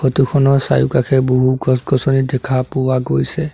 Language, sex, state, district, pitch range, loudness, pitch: Assamese, male, Assam, Sonitpur, 130-135 Hz, -15 LUFS, 130 Hz